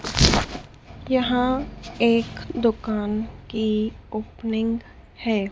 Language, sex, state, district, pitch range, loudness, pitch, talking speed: Hindi, female, Madhya Pradesh, Dhar, 215-235 Hz, -24 LUFS, 225 Hz, 65 wpm